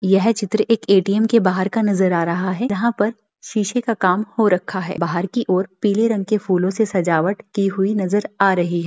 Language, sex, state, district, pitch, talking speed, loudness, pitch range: Hindi, female, Bihar, Darbhanga, 200 Hz, 230 wpm, -19 LUFS, 185-220 Hz